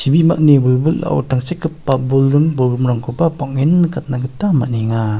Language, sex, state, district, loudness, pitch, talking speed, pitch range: Garo, male, Meghalaya, South Garo Hills, -15 LUFS, 135 Hz, 105 wpm, 125-160 Hz